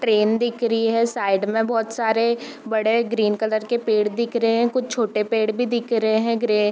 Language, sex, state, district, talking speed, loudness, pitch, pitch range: Hindi, female, Bihar, East Champaran, 225 wpm, -21 LUFS, 225 Hz, 220-235 Hz